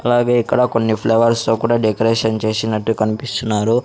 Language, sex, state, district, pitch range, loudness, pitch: Telugu, male, Andhra Pradesh, Sri Satya Sai, 110-120 Hz, -17 LUFS, 115 Hz